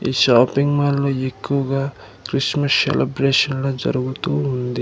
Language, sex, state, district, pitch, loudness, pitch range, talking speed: Telugu, male, Andhra Pradesh, Manyam, 135 Hz, -19 LUFS, 130-140 Hz, 100 wpm